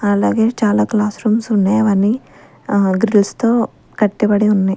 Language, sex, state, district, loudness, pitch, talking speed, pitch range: Telugu, female, Andhra Pradesh, Sri Satya Sai, -15 LUFS, 210 Hz, 115 wpm, 205-220 Hz